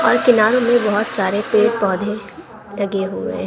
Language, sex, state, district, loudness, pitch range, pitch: Hindi, female, Bihar, West Champaran, -17 LUFS, 200-225 Hz, 215 Hz